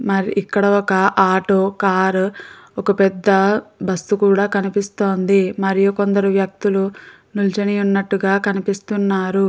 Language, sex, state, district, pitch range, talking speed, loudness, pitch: Telugu, female, Andhra Pradesh, Guntur, 195-200 Hz, 100 wpm, -17 LUFS, 195 Hz